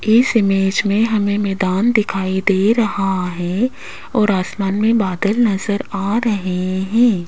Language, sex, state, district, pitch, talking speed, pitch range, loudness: Hindi, female, Rajasthan, Jaipur, 200 Hz, 140 wpm, 190-225 Hz, -17 LUFS